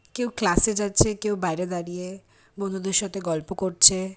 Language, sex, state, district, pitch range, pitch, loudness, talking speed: Bengali, female, West Bengal, Kolkata, 180-205 Hz, 195 Hz, -22 LUFS, 170 wpm